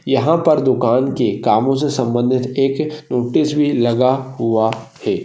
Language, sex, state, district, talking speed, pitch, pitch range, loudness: Hindi, male, Maharashtra, Solapur, 160 wpm, 130 Hz, 120-145 Hz, -17 LUFS